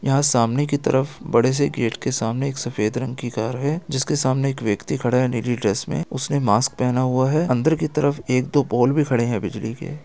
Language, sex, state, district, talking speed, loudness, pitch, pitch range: Hindi, male, Chhattisgarh, Raigarh, 240 wpm, -21 LUFS, 130 Hz, 120-140 Hz